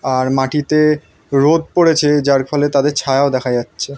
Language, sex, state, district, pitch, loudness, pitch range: Bengali, male, West Bengal, North 24 Parganas, 140 Hz, -15 LUFS, 135-150 Hz